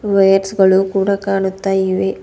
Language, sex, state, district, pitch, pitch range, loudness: Kannada, female, Karnataka, Bidar, 195 Hz, 190-195 Hz, -15 LUFS